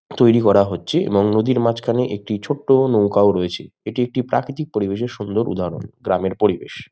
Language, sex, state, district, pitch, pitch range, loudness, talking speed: Bengali, male, West Bengal, Malda, 110 Hz, 100-125 Hz, -19 LUFS, 155 wpm